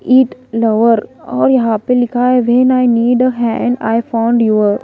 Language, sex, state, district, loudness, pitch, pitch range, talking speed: Hindi, female, Odisha, Malkangiri, -13 LUFS, 235 Hz, 225-250 Hz, 200 wpm